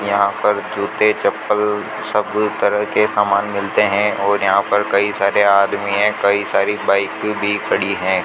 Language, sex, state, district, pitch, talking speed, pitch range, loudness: Hindi, male, Rajasthan, Bikaner, 100 Hz, 165 wpm, 100-105 Hz, -17 LUFS